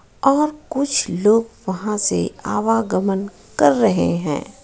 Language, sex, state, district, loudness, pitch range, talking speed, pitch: Hindi, female, Jharkhand, Ranchi, -19 LUFS, 190-275 Hz, 115 wpm, 215 Hz